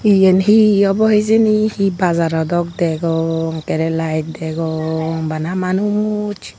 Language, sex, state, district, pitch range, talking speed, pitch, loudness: Chakma, female, Tripura, Unakoti, 160-205 Hz, 120 wpm, 175 Hz, -16 LUFS